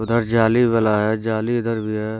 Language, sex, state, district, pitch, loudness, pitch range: Hindi, male, Jharkhand, Deoghar, 110 Hz, -19 LUFS, 110-115 Hz